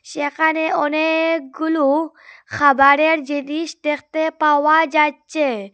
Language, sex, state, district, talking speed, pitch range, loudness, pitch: Bengali, female, Assam, Hailakandi, 75 wpm, 290-320 Hz, -17 LUFS, 300 Hz